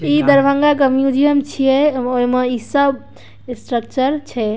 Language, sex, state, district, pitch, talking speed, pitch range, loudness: Maithili, female, Bihar, Darbhanga, 270 Hz, 145 wpm, 250-285 Hz, -15 LUFS